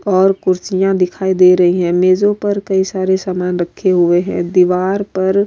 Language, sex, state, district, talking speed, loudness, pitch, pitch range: Urdu, female, Uttar Pradesh, Budaun, 185 wpm, -14 LUFS, 185 Hz, 180-190 Hz